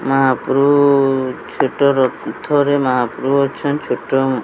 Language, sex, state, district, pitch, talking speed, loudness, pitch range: Odia, male, Odisha, Sambalpur, 135 Hz, 110 wpm, -16 LUFS, 130-140 Hz